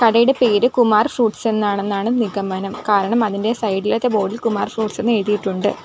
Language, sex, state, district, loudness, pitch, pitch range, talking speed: Malayalam, female, Kerala, Kollam, -18 LUFS, 215 Hz, 200-235 Hz, 165 wpm